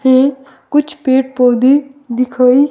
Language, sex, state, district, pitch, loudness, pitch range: Hindi, female, Himachal Pradesh, Shimla, 265 Hz, -13 LUFS, 255-275 Hz